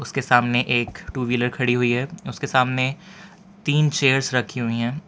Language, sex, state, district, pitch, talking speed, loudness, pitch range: Hindi, male, Gujarat, Valsad, 130 Hz, 175 wpm, -21 LUFS, 120-145 Hz